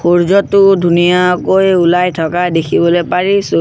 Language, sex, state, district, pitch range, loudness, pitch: Assamese, male, Assam, Sonitpur, 175-190 Hz, -11 LUFS, 180 Hz